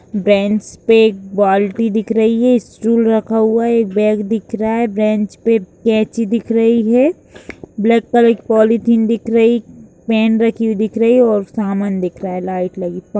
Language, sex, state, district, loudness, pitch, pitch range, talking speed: Hindi, female, Chhattisgarh, Kabirdham, -14 LUFS, 220 Hz, 210-230 Hz, 180 wpm